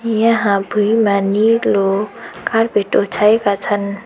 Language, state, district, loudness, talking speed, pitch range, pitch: Nepali, West Bengal, Darjeeling, -15 LUFS, 90 wpm, 200-225 Hz, 205 Hz